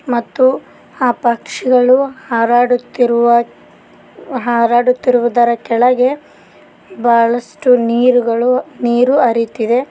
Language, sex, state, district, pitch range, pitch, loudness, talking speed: Kannada, female, Karnataka, Koppal, 235-255 Hz, 245 Hz, -13 LUFS, 65 wpm